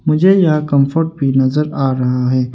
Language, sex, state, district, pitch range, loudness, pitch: Hindi, male, Arunachal Pradesh, Longding, 130-155 Hz, -14 LUFS, 140 Hz